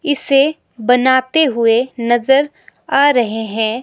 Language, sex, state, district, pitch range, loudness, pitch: Hindi, female, Himachal Pradesh, Shimla, 235-280 Hz, -14 LUFS, 260 Hz